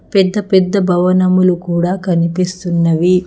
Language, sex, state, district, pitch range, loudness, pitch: Telugu, female, Telangana, Hyderabad, 175-185 Hz, -14 LUFS, 180 Hz